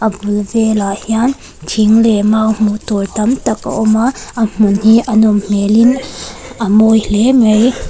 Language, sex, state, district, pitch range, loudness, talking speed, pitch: Mizo, female, Mizoram, Aizawl, 210-225 Hz, -12 LUFS, 175 wpm, 220 Hz